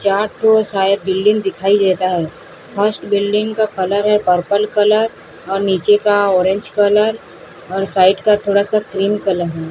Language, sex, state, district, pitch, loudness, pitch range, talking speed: Hindi, female, Odisha, Sambalpur, 200 Hz, -15 LUFS, 190-210 Hz, 165 wpm